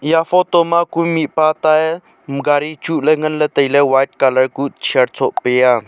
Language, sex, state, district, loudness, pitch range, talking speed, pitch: Wancho, male, Arunachal Pradesh, Longding, -15 LUFS, 140-165 Hz, 165 wpm, 155 Hz